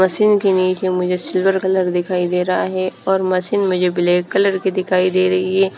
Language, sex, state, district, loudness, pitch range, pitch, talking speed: Hindi, female, Haryana, Rohtak, -17 LUFS, 180-190 Hz, 185 Hz, 210 wpm